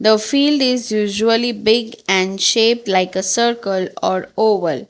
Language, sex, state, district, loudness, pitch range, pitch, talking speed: English, female, Gujarat, Valsad, -16 LUFS, 190-235 Hz, 215 Hz, 145 wpm